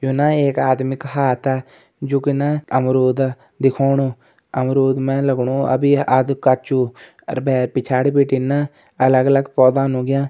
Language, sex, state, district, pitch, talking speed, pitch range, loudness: Garhwali, male, Uttarakhand, Uttarkashi, 135 Hz, 130 wpm, 130-140 Hz, -18 LUFS